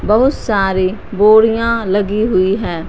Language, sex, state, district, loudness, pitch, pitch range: Hindi, female, Punjab, Fazilka, -14 LUFS, 210 Hz, 195-220 Hz